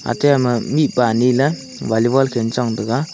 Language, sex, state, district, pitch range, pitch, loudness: Wancho, male, Arunachal Pradesh, Longding, 120-140 Hz, 125 Hz, -17 LUFS